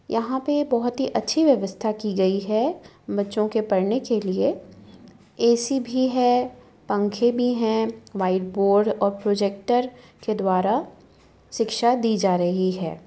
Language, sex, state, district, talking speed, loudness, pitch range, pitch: Hindi, female, Uttar Pradesh, Etah, 145 wpm, -23 LUFS, 200-245 Hz, 220 Hz